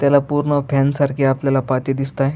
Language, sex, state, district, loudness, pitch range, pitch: Marathi, male, Maharashtra, Aurangabad, -18 LUFS, 135-145 Hz, 135 Hz